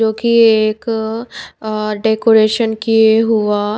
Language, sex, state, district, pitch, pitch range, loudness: Hindi, female, Himachal Pradesh, Shimla, 220 Hz, 215-225 Hz, -13 LUFS